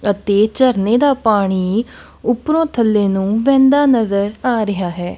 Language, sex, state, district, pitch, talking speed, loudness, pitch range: Punjabi, female, Punjab, Kapurthala, 220 Hz, 140 wpm, -15 LUFS, 200-260 Hz